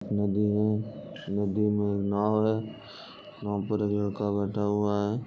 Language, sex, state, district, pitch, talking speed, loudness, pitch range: Bhojpuri, male, Uttar Pradesh, Gorakhpur, 105 Hz, 135 wpm, -28 LUFS, 100-105 Hz